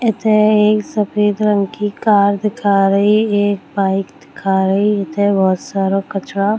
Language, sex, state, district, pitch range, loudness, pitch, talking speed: Hindi, female, Bihar, Darbhanga, 195-210 Hz, -15 LUFS, 205 Hz, 155 wpm